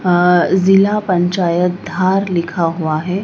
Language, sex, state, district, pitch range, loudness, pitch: Hindi, female, Madhya Pradesh, Dhar, 175-190 Hz, -15 LUFS, 180 Hz